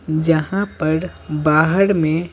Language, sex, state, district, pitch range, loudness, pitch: Hindi, male, Bihar, Patna, 155-185 Hz, -18 LUFS, 160 Hz